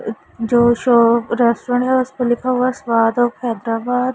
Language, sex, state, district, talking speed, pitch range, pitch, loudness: Hindi, female, Punjab, Pathankot, 175 wpm, 235-250 Hz, 240 Hz, -16 LUFS